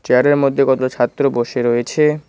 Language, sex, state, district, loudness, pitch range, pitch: Bengali, male, West Bengal, Cooch Behar, -16 LUFS, 120-145 Hz, 135 Hz